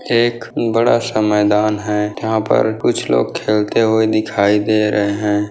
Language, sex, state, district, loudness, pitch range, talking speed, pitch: Hindi, male, Maharashtra, Sindhudurg, -16 LUFS, 105-110 Hz, 155 wpm, 105 Hz